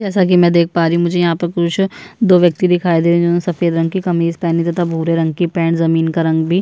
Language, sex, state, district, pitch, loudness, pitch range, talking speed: Hindi, female, Chhattisgarh, Bastar, 170 Hz, -15 LUFS, 165-175 Hz, 290 wpm